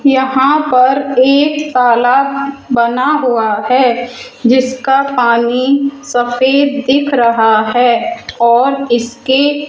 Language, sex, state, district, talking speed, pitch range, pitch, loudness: Hindi, female, Rajasthan, Jaipur, 100 wpm, 245-275 Hz, 260 Hz, -12 LUFS